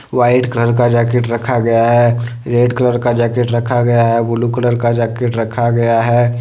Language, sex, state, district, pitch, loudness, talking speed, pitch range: Hindi, male, Jharkhand, Deoghar, 120 Hz, -14 LUFS, 195 wpm, 115-120 Hz